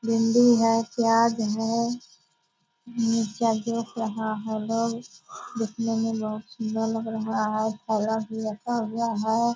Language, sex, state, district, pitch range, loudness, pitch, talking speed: Hindi, female, Bihar, Purnia, 220-230 Hz, -26 LUFS, 225 Hz, 125 wpm